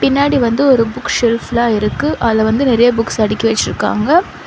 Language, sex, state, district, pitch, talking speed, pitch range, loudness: Tamil, female, Tamil Nadu, Chennai, 235 Hz, 160 wpm, 225-260 Hz, -14 LUFS